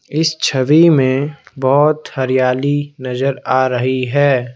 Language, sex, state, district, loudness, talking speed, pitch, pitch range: Hindi, male, Assam, Kamrup Metropolitan, -15 LUFS, 120 wpm, 135 Hz, 130-145 Hz